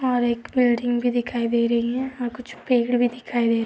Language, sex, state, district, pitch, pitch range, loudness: Hindi, female, Uttar Pradesh, Muzaffarnagar, 240 Hz, 235-245 Hz, -23 LUFS